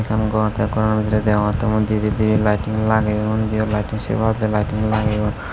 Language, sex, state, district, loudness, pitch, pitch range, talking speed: Chakma, male, Tripura, Unakoti, -19 LUFS, 110 Hz, 105-110 Hz, 175 wpm